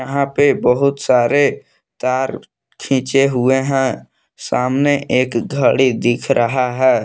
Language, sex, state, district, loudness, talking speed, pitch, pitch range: Hindi, male, Jharkhand, Palamu, -16 LUFS, 120 wpm, 130 Hz, 125-140 Hz